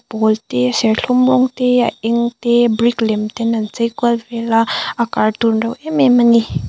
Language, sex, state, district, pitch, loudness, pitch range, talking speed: Mizo, female, Mizoram, Aizawl, 235 Hz, -15 LUFS, 225-245 Hz, 190 wpm